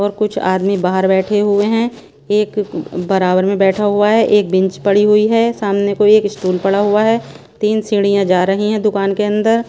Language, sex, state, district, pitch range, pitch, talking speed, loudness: Hindi, female, Punjab, Pathankot, 195-210 Hz, 205 Hz, 205 wpm, -14 LUFS